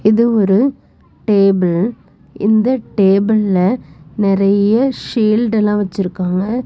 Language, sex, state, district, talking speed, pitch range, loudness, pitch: Tamil, female, Tamil Nadu, Nilgiris, 70 wpm, 195-225 Hz, -14 LUFS, 210 Hz